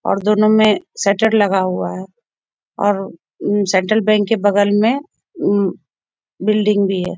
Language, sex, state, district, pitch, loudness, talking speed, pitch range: Hindi, female, Bihar, Bhagalpur, 205 Hz, -16 LUFS, 135 wpm, 195-215 Hz